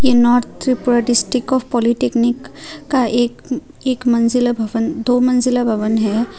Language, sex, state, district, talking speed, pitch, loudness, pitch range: Hindi, female, Tripura, Unakoti, 140 wpm, 245 Hz, -16 LUFS, 235-255 Hz